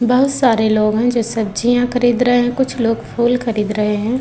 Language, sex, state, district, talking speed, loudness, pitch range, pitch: Hindi, female, Uttar Pradesh, Muzaffarnagar, 215 wpm, -16 LUFS, 220-245 Hz, 240 Hz